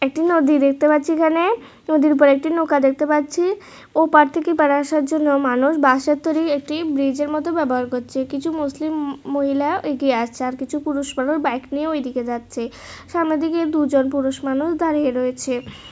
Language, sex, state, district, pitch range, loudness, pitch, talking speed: Bengali, female, Tripura, West Tripura, 270-315 Hz, -19 LUFS, 290 Hz, 165 wpm